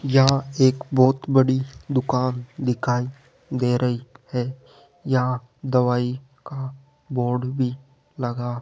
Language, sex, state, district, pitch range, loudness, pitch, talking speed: Hindi, male, Rajasthan, Jaipur, 125-135 Hz, -23 LUFS, 130 Hz, 110 wpm